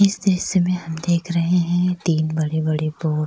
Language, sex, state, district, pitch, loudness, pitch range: Urdu, female, Bihar, Saharsa, 170 Hz, -20 LUFS, 155-180 Hz